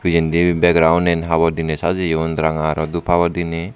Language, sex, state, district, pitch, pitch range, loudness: Chakma, male, Tripura, Dhalai, 85 Hz, 80-85 Hz, -17 LUFS